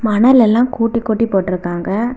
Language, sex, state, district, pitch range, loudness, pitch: Tamil, female, Tamil Nadu, Kanyakumari, 195-235 Hz, -14 LUFS, 225 Hz